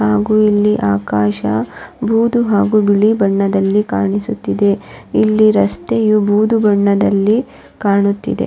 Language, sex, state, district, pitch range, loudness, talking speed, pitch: Kannada, female, Karnataka, Raichur, 195-215 Hz, -14 LUFS, 90 wpm, 205 Hz